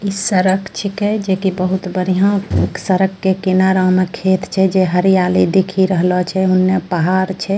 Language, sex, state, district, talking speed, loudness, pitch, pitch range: Angika, female, Bihar, Bhagalpur, 160 wpm, -15 LUFS, 190 Hz, 185-190 Hz